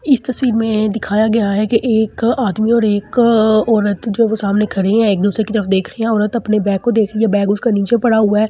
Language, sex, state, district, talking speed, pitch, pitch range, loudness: Hindi, female, Delhi, New Delhi, 270 wpm, 220 Hz, 205-230 Hz, -15 LUFS